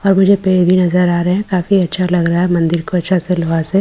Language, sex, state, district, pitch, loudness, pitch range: Hindi, female, Bihar, Katihar, 180 Hz, -14 LUFS, 175-185 Hz